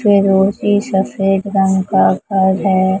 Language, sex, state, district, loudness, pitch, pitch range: Hindi, male, Maharashtra, Mumbai Suburban, -14 LUFS, 195 Hz, 190-195 Hz